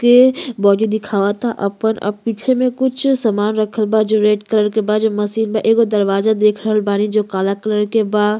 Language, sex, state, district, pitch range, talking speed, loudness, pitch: Bhojpuri, female, Uttar Pradesh, Gorakhpur, 210-225 Hz, 205 wpm, -16 LUFS, 215 Hz